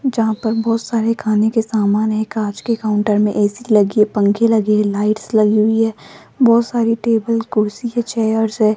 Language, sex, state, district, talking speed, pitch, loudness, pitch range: Hindi, female, Rajasthan, Jaipur, 190 wpm, 220 Hz, -16 LUFS, 210-230 Hz